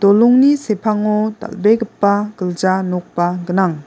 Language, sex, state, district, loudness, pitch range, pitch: Garo, female, Meghalaya, West Garo Hills, -16 LUFS, 185-215 Hz, 205 Hz